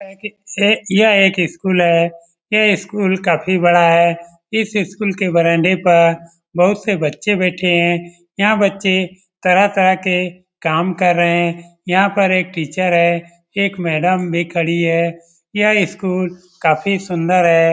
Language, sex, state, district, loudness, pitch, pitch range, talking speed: Hindi, male, Bihar, Lakhisarai, -15 LUFS, 180 Hz, 170-195 Hz, 140 wpm